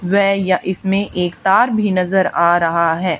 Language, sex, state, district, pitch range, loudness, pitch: Hindi, female, Haryana, Charkhi Dadri, 175-195 Hz, -15 LUFS, 185 Hz